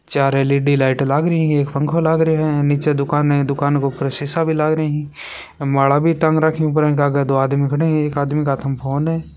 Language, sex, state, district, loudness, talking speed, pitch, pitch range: Hindi, male, Rajasthan, Churu, -17 LUFS, 260 wpm, 145 Hz, 140-155 Hz